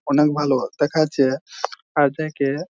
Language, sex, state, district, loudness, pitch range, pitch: Bengali, male, West Bengal, Jhargram, -21 LUFS, 140-155 Hz, 145 Hz